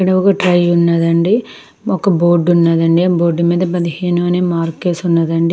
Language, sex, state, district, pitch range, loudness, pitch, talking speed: Telugu, female, Andhra Pradesh, Krishna, 170-180 Hz, -14 LUFS, 175 Hz, 185 wpm